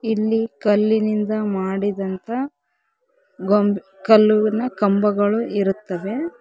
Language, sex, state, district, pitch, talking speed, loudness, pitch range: Kannada, female, Karnataka, Koppal, 215 Hz, 65 wpm, -20 LUFS, 200-225 Hz